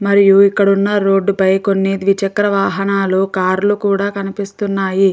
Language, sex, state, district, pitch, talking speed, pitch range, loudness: Telugu, female, Andhra Pradesh, Guntur, 195 Hz, 140 wpm, 195-200 Hz, -14 LUFS